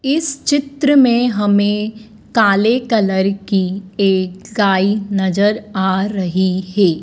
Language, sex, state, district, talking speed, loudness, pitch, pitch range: Hindi, female, Madhya Pradesh, Dhar, 110 wpm, -16 LUFS, 200 Hz, 190-225 Hz